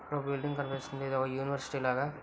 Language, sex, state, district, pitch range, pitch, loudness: Telugu, female, Andhra Pradesh, Visakhapatnam, 135-145 Hz, 140 Hz, -34 LUFS